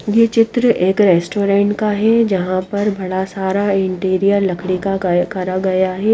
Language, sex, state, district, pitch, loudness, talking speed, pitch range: Hindi, female, Haryana, Rohtak, 195 Hz, -16 LUFS, 155 wpm, 185-205 Hz